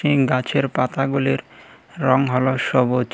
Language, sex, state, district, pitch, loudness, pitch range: Bengali, male, Tripura, West Tripura, 130 Hz, -20 LUFS, 125-140 Hz